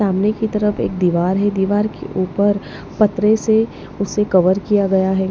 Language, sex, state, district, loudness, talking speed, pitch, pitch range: Hindi, female, Punjab, Pathankot, -17 LUFS, 180 wpm, 200 Hz, 190-210 Hz